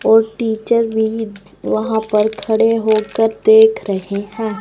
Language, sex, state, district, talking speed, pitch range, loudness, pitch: Hindi, female, Chandigarh, Chandigarh, 130 wpm, 210-225 Hz, -15 LUFS, 220 Hz